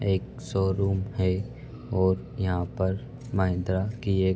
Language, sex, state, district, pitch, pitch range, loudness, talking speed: Hindi, male, Uttar Pradesh, Budaun, 95 Hz, 95-100 Hz, -28 LUFS, 135 wpm